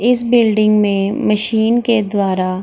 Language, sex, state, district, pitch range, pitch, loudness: Hindi, female, Bihar, Gaya, 200-235 Hz, 215 Hz, -14 LUFS